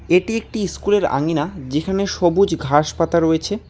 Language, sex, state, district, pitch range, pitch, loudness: Bengali, male, West Bengal, Alipurduar, 160-200 Hz, 175 Hz, -19 LUFS